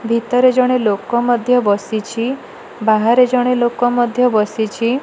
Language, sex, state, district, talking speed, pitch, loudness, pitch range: Odia, female, Odisha, Malkangiri, 120 wpm, 240 Hz, -15 LUFS, 220-250 Hz